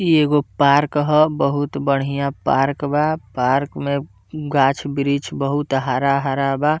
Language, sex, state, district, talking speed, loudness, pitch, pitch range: Bhojpuri, male, Bihar, Muzaffarpur, 125 wpm, -19 LUFS, 140 Hz, 140-150 Hz